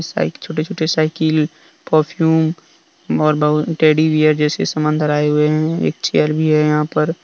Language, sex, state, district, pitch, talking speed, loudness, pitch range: Hindi, male, Jharkhand, Deoghar, 155 Hz, 175 wpm, -16 LUFS, 150-160 Hz